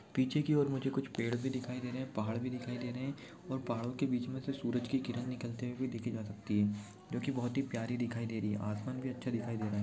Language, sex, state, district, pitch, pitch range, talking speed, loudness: Hindi, male, Chhattisgarh, Kabirdham, 125 Hz, 115-130 Hz, 285 wpm, -37 LUFS